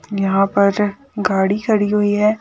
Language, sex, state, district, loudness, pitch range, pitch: Hindi, female, Rajasthan, Churu, -17 LUFS, 200-215 Hz, 205 Hz